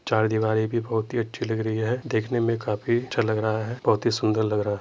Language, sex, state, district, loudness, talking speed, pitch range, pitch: Hindi, male, Uttar Pradesh, Jyotiba Phule Nagar, -25 LUFS, 260 wpm, 110-115 Hz, 110 Hz